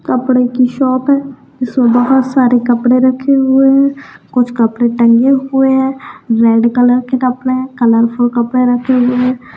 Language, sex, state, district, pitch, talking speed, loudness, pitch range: Kumaoni, female, Uttarakhand, Tehri Garhwal, 250 Hz, 150 wpm, -11 LUFS, 245-265 Hz